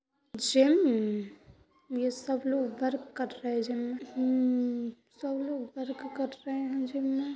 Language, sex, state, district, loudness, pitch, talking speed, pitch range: Hindi, female, Uttar Pradesh, Jalaun, -31 LUFS, 265 Hz, 155 wpm, 245-275 Hz